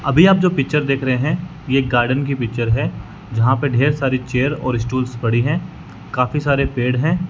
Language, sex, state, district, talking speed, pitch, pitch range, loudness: Hindi, male, Rajasthan, Bikaner, 205 wpm, 135 Hz, 125-150 Hz, -18 LUFS